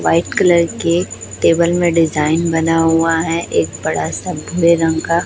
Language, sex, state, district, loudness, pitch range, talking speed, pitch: Hindi, male, Chhattisgarh, Raipur, -15 LUFS, 160-170 Hz, 170 wpm, 165 Hz